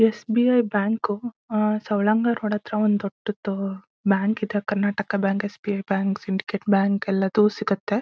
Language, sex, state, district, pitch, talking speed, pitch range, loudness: Kannada, female, Karnataka, Shimoga, 205 Hz, 180 wpm, 200-215 Hz, -23 LUFS